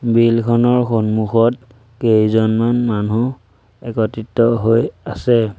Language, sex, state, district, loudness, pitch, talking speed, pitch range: Assamese, male, Assam, Sonitpur, -16 LUFS, 115 Hz, 75 wpm, 110-115 Hz